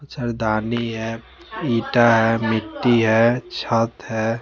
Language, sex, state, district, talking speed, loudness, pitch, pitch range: Hindi, male, Chandigarh, Chandigarh, 110 wpm, -20 LUFS, 115 Hz, 110-120 Hz